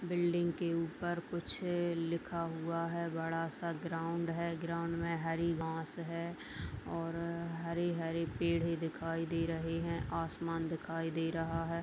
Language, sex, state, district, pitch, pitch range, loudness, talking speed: Hindi, female, Bihar, Bhagalpur, 165 Hz, 165-170 Hz, -38 LUFS, 150 wpm